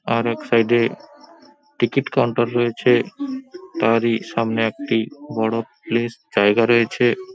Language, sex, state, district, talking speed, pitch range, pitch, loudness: Bengali, male, West Bengal, Paschim Medinipur, 115 wpm, 115-195 Hz, 120 Hz, -20 LUFS